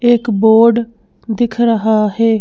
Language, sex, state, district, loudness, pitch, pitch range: Hindi, female, Madhya Pradesh, Bhopal, -12 LUFS, 225 Hz, 220-235 Hz